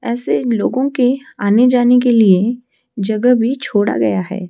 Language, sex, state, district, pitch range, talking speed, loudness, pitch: Hindi, female, Odisha, Malkangiri, 210-250 Hz, 145 wpm, -14 LUFS, 240 Hz